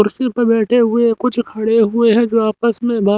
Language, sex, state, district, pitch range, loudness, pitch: Hindi, male, Haryana, Rohtak, 220-240 Hz, -15 LUFS, 230 Hz